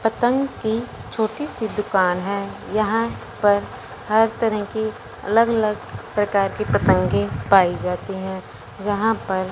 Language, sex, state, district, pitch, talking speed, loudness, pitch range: Hindi, male, Punjab, Fazilka, 210 Hz, 130 wpm, -21 LUFS, 195-225 Hz